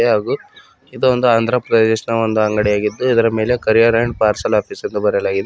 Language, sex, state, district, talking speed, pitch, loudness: Kannada, male, Karnataka, Bidar, 175 wpm, 115 Hz, -16 LUFS